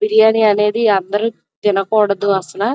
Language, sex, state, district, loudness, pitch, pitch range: Telugu, female, Andhra Pradesh, Krishna, -15 LUFS, 210 Hz, 200-220 Hz